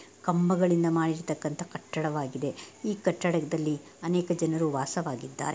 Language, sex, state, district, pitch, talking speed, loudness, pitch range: Kannada, female, Karnataka, Dakshina Kannada, 160 Hz, 95 wpm, -29 LUFS, 150-175 Hz